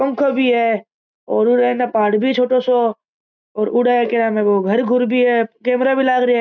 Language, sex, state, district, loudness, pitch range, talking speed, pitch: Marwari, male, Rajasthan, Churu, -16 LUFS, 225-250 Hz, 180 wpm, 245 Hz